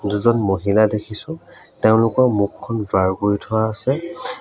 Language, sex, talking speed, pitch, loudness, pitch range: Assamese, male, 120 wpm, 110 Hz, -19 LUFS, 105-120 Hz